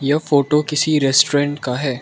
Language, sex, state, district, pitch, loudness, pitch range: Hindi, male, Arunachal Pradesh, Lower Dibang Valley, 145 Hz, -17 LUFS, 135-150 Hz